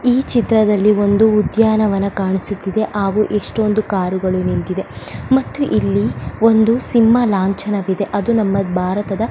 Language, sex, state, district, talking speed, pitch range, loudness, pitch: Kannada, female, Karnataka, Belgaum, 115 wpm, 190-220 Hz, -16 LUFS, 205 Hz